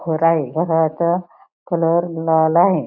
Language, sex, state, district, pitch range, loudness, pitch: Marathi, female, Maharashtra, Pune, 160-170 Hz, -18 LUFS, 165 Hz